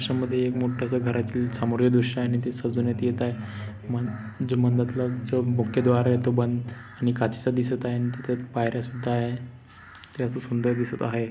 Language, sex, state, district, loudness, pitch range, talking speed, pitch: Marathi, male, Maharashtra, Chandrapur, -26 LUFS, 120-125 Hz, 190 wpm, 120 Hz